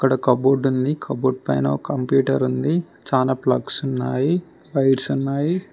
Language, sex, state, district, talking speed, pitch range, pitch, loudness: Telugu, male, Telangana, Mahabubabad, 125 wpm, 130-140 Hz, 135 Hz, -21 LUFS